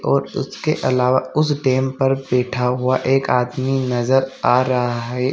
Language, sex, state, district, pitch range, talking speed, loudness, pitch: Hindi, male, Chhattisgarh, Bilaspur, 125-135 Hz, 155 wpm, -19 LUFS, 130 Hz